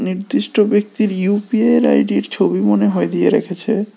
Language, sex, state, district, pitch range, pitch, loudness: Bengali, male, Tripura, West Tripura, 185-220 Hz, 210 Hz, -16 LUFS